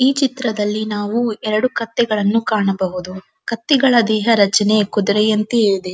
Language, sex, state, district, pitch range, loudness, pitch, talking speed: Kannada, female, Karnataka, Dharwad, 205-230 Hz, -17 LUFS, 215 Hz, 110 wpm